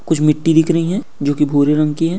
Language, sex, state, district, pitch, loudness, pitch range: Hindi, male, Uttar Pradesh, Etah, 155 Hz, -15 LUFS, 150-165 Hz